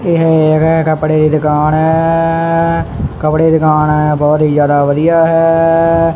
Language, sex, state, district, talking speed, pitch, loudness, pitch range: Punjabi, male, Punjab, Kapurthala, 145 wpm, 160 Hz, -11 LUFS, 155-165 Hz